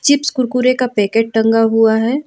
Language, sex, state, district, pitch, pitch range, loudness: Hindi, female, Jharkhand, Ranchi, 230 Hz, 225-255 Hz, -14 LUFS